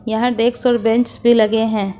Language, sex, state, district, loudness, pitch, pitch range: Hindi, female, Jharkhand, Ranchi, -16 LUFS, 230 Hz, 220-240 Hz